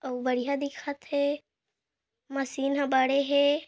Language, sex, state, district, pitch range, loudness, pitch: Hindi, female, Chhattisgarh, Kabirdham, 270-285 Hz, -28 LUFS, 280 Hz